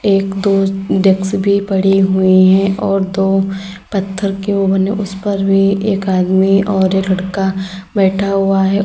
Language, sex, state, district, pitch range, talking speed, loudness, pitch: Hindi, female, Uttar Pradesh, Lalitpur, 190-195 Hz, 165 wpm, -14 LUFS, 195 Hz